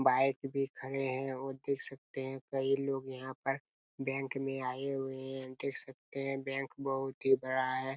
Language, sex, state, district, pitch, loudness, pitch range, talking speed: Hindi, male, Chhattisgarh, Raigarh, 135 Hz, -36 LUFS, 130-135 Hz, 190 wpm